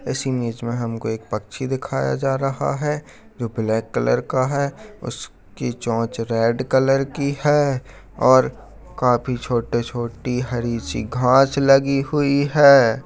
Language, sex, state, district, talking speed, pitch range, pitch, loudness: Hindi, male, Bihar, Darbhanga, 140 wpm, 115-135 Hz, 125 Hz, -20 LUFS